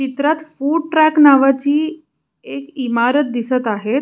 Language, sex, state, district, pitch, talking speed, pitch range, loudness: Marathi, female, Maharashtra, Pune, 280 Hz, 120 wpm, 255-310 Hz, -15 LUFS